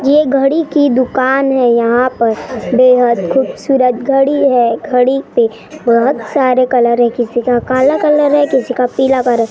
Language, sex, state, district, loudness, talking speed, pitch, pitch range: Hindi, female, Maharashtra, Gondia, -12 LUFS, 170 wpm, 255 Hz, 240-275 Hz